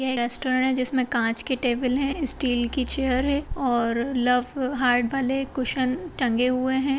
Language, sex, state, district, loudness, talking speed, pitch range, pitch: Hindi, female, Bihar, Madhepura, -21 LUFS, 170 wpm, 245-270 Hz, 255 Hz